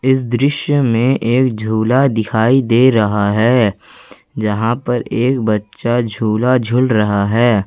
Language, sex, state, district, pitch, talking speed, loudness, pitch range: Hindi, male, Jharkhand, Ranchi, 120 Hz, 135 wpm, -15 LUFS, 110-130 Hz